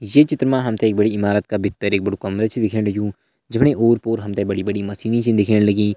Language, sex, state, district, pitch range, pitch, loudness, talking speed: Hindi, male, Uttarakhand, Uttarkashi, 100-115 Hz, 105 Hz, -19 LUFS, 260 wpm